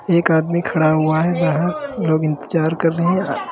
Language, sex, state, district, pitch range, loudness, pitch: Hindi, male, Uttar Pradesh, Lalitpur, 155-175 Hz, -18 LUFS, 170 Hz